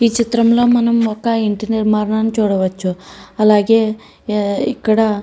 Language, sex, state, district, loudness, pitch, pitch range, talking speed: Telugu, female, Andhra Pradesh, Srikakulam, -15 LUFS, 215 Hz, 210-230 Hz, 115 wpm